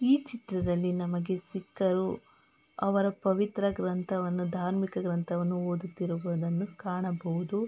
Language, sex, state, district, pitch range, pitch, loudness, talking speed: Kannada, female, Karnataka, Mysore, 175-195 Hz, 185 Hz, -31 LUFS, 80 wpm